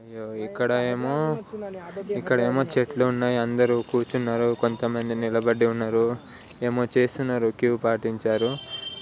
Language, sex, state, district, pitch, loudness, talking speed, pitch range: Telugu, male, Andhra Pradesh, Guntur, 120 Hz, -24 LUFS, 105 wpm, 115-125 Hz